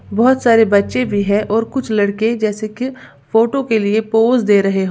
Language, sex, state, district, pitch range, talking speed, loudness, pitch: Hindi, female, Uttar Pradesh, Lalitpur, 205-235 Hz, 210 wpm, -15 LUFS, 220 Hz